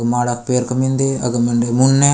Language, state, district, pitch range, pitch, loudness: Gondi, Chhattisgarh, Sukma, 120-135 Hz, 125 Hz, -16 LUFS